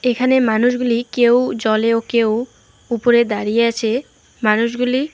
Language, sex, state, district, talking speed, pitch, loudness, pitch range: Bengali, female, West Bengal, Alipurduar, 130 wpm, 235 Hz, -17 LUFS, 230-250 Hz